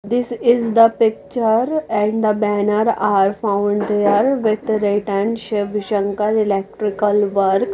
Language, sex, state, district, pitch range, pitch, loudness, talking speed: English, female, Odisha, Nuapada, 205-225 Hz, 210 Hz, -17 LUFS, 140 wpm